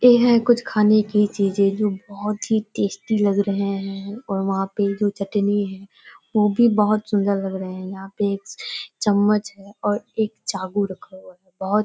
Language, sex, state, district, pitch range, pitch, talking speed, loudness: Hindi, female, Bihar, Kishanganj, 195-210 Hz, 205 Hz, 195 wpm, -21 LUFS